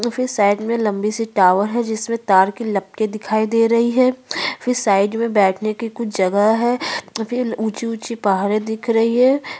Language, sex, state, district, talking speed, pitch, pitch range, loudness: Hindi, female, Uttarakhand, Tehri Garhwal, 170 wpm, 225 Hz, 205-235 Hz, -18 LUFS